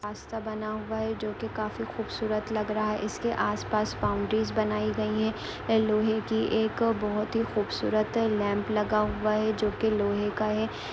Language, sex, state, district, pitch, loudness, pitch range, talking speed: Hindi, female, Uttar Pradesh, Hamirpur, 215 Hz, -28 LUFS, 210-220 Hz, 170 wpm